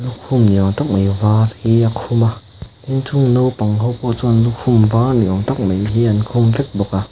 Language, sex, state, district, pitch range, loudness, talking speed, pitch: Mizo, male, Mizoram, Aizawl, 105-125 Hz, -15 LUFS, 225 wpm, 115 Hz